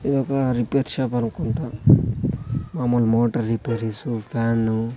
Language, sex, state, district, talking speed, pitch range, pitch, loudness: Telugu, male, Andhra Pradesh, Sri Satya Sai, 110 wpm, 115-130 Hz, 120 Hz, -22 LUFS